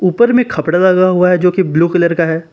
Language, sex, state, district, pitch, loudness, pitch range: Hindi, male, Jharkhand, Palamu, 180 Hz, -12 LUFS, 170-185 Hz